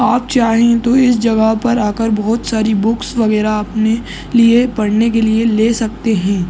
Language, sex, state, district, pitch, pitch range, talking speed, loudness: Hindi, male, Uttar Pradesh, Ghazipur, 225 Hz, 220-235 Hz, 175 wpm, -14 LUFS